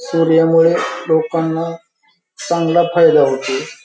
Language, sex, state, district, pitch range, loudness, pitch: Marathi, male, Maharashtra, Pune, 160-170 Hz, -14 LUFS, 165 Hz